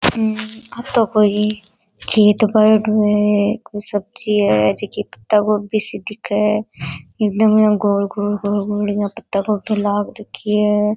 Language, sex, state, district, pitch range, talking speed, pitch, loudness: Rajasthani, female, Rajasthan, Nagaur, 205-215 Hz, 140 wpm, 210 Hz, -17 LUFS